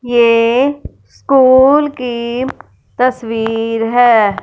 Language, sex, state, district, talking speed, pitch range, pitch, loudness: Hindi, female, Punjab, Fazilka, 70 wpm, 230-260 Hz, 240 Hz, -12 LUFS